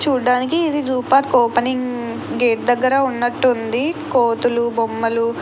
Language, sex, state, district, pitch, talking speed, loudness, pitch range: Telugu, female, Andhra Pradesh, Krishna, 245 Hz, 120 wpm, -18 LUFS, 235-260 Hz